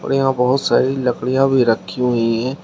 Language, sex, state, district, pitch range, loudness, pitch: Hindi, male, Uttar Pradesh, Shamli, 120-135 Hz, -17 LUFS, 125 Hz